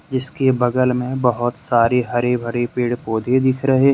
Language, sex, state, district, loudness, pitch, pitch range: Hindi, male, Jharkhand, Deoghar, -18 LUFS, 125 Hz, 120-130 Hz